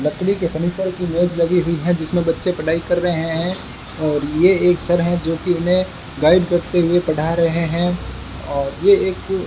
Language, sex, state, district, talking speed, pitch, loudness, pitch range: Hindi, male, Rajasthan, Bikaner, 205 wpm, 175 Hz, -18 LUFS, 165-180 Hz